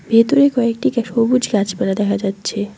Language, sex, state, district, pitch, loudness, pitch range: Bengali, female, West Bengal, Cooch Behar, 225 Hz, -17 LUFS, 205-245 Hz